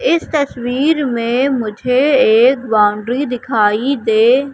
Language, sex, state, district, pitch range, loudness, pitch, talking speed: Hindi, female, Madhya Pradesh, Katni, 225-280 Hz, -14 LUFS, 255 Hz, 105 wpm